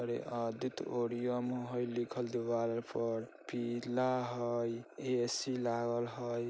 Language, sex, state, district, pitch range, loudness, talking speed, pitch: Bajjika, male, Bihar, Vaishali, 120-125 Hz, -37 LUFS, 120 wpm, 120 Hz